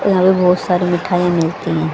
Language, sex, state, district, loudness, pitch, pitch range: Hindi, female, Haryana, Jhajjar, -15 LUFS, 180 Hz, 170-185 Hz